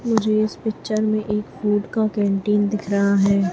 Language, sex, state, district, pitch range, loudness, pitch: Hindi, female, Chhattisgarh, Raipur, 200-215 Hz, -21 LUFS, 210 Hz